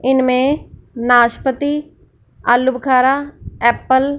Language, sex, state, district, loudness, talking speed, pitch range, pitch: Hindi, female, Punjab, Fazilka, -15 LUFS, 85 wpm, 245-280 Hz, 260 Hz